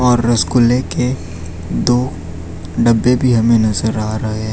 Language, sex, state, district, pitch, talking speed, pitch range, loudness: Hindi, male, Gujarat, Valsad, 110 Hz, 145 wpm, 85-120 Hz, -15 LUFS